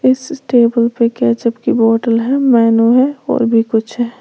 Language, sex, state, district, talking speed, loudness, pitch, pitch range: Hindi, female, Uttar Pradesh, Lalitpur, 200 wpm, -13 LUFS, 235 Hz, 230-255 Hz